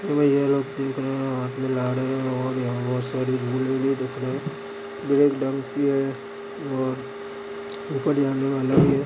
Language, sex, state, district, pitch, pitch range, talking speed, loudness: Hindi, male, Maharashtra, Solapur, 135 Hz, 130-145 Hz, 110 wpm, -24 LUFS